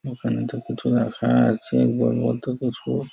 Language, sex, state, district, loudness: Bengali, male, West Bengal, Jhargram, -22 LUFS